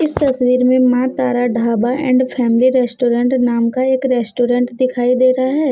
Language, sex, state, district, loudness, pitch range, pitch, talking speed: Hindi, female, Jharkhand, Deoghar, -15 LUFS, 245-260 Hz, 250 Hz, 165 wpm